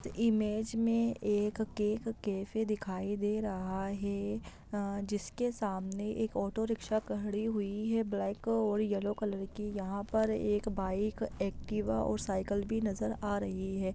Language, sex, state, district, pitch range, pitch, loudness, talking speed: Hindi, female, Bihar, Sitamarhi, 200-220 Hz, 210 Hz, -35 LUFS, 150 wpm